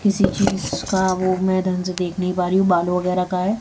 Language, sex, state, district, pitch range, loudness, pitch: Hindi, female, Haryana, Jhajjar, 180-190 Hz, -20 LUFS, 185 Hz